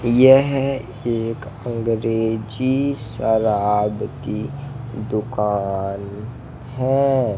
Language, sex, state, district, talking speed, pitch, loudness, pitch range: Hindi, male, Madhya Pradesh, Dhar, 55 wpm, 115 Hz, -20 LUFS, 105-130 Hz